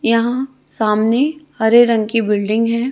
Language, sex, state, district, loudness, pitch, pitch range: Hindi, female, Chhattisgarh, Raipur, -16 LUFS, 230 Hz, 220-250 Hz